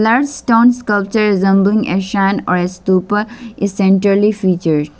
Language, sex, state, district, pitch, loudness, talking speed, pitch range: English, female, Arunachal Pradesh, Lower Dibang Valley, 200 Hz, -14 LUFS, 130 wpm, 190-220 Hz